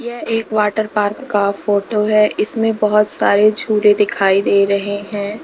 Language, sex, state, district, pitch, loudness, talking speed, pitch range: Hindi, female, Uttar Pradesh, Lalitpur, 210 Hz, -15 LUFS, 165 wpm, 205-215 Hz